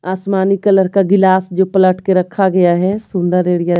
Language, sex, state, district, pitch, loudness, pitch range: Hindi, female, Bihar, Patna, 190 Hz, -13 LUFS, 180-195 Hz